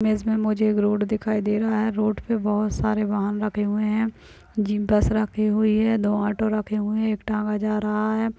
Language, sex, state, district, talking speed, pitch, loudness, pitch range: Hindi, female, Chhattisgarh, Balrampur, 230 wpm, 215 Hz, -23 LUFS, 210-215 Hz